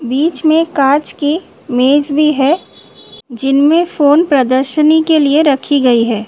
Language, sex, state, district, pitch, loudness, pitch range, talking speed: Hindi, female, Uttar Pradesh, Budaun, 290 Hz, -12 LUFS, 270-310 Hz, 145 wpm